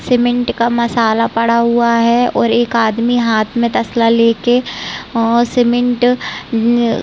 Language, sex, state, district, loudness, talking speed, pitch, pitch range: Hindi, female, Chhattisgarh, Raigarh, -14 LUFS, 135 wpm, 235 Hz, 230-240 Hz